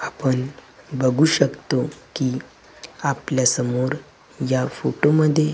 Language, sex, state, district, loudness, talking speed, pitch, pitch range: Marathi, male, Maharashtra, Gondia, -21 LUFS, 85 wpm, 130 Hz, 130-150 Hz